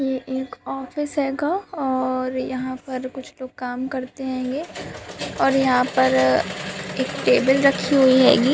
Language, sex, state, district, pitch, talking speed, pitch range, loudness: Hindi, female, Bihar, Jamui, 260 Hz, 140 wpm, 255-270 Hz, -21 LUFS